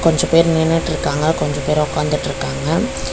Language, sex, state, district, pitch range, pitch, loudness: Tamil, female, Tamil Nadu, Chennai, 160-165 Hz, 165 Hz, -17 LUFS